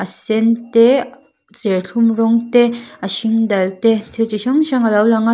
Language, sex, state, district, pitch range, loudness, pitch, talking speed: Mizo, female, Mizoram, Aizawl, 215-235 Hz, -15 LUFS, 225 Hz, 190 wpm